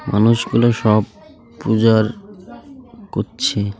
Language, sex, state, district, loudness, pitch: Bengali, male, West Bengal, Alipurduar, -17 LUFS, 115 Hz